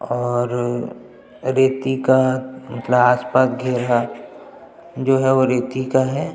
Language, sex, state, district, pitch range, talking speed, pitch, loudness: Hindi, male, Chhattisgarh, Jashpur, 125-130 Hz, 95 wpm, 130 Hz, -18 LUFS